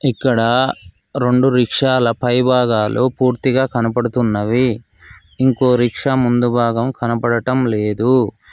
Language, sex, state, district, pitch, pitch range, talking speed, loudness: Telugu, male, Telangana, Mahabubabad, 120 Hz, 115-130 Hz, 90 wpm, -16 LUFS